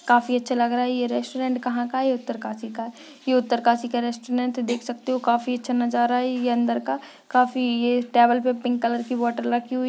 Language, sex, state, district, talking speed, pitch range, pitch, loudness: Hindi, female, Uttarakhand, Uttarkashi, 235 wpm, 240-250 Hz, 245 Hz, -23 LUFS